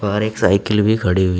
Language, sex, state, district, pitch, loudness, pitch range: Hindi, male, Uttar Pradesh, Shamli, 105 Hz, -17 LUFS, 95-105 Hz